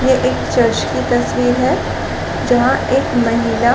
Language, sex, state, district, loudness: Hindi, female, Chhattisgarh, Raigarh, -15 LUFS